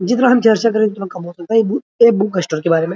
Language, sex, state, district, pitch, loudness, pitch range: Hindi, male, Bihar, Araria, 205 Hz, -15 LUFS, 175-230 Hz